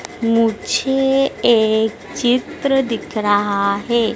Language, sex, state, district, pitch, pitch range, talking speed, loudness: Hindi, female, Madhya Pradesh, Dhar, 230 Hz, 220-265 Hz, 85 wpm, -17 LUFS